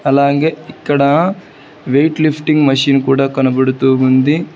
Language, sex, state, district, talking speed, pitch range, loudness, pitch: Telugu, male, Telangana, Hyderabad, 105 wpm, 135-155 Hz, -13 LUFS, 140 Hz